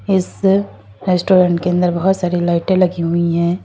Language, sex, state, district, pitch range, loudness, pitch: Hindi, female, Uttar Pradesh, Lalitpur, 170-185 Hz, -16 LUFS, 180 Hz